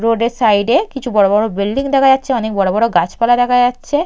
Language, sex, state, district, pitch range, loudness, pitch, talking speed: Bengali, female, West Bengal, Purulia, 210-260 Hz, -14 LUFS, 235 Hz, 235 wpm